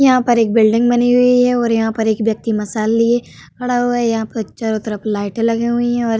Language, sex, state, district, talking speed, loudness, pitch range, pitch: Hindi, female, Uttar Pradesh, Hamirpur, 260 wpm, -16 LUFS, 220-240 Hz, 230 Hz